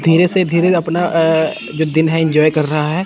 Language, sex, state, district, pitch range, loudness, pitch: Hindi, male, Chandigarh, Chandigarh, 155-175 Hz, -14 LUFS, 165 Hz